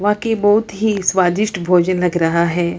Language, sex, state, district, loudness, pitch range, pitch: Hindi, female, Bihar, Lakhisarai, -16 LUFS, 175-210 Hz, 185 Hz